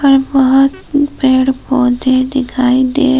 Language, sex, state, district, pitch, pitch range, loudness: Hindi, female, Jharkhand, Palamu, 265 Hz, 260-275 Hz, -12 LUFS